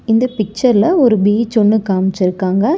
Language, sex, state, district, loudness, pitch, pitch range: Tamil, male, Tamil Nadu, Chennai, -14 LUFS, 215 Hz, 195-235 Hz